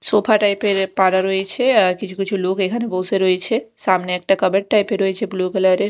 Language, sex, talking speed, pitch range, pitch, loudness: Bengali, female, 215 wpm, 185-205 Hz, 195 Hz, -18 LUFS